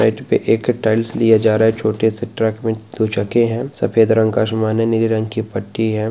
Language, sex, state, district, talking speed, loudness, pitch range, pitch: Hindi, male, Chhattisgarh, Sukma, 205 wpm, -17 LUFS, 110-115 Hz, 110 Hz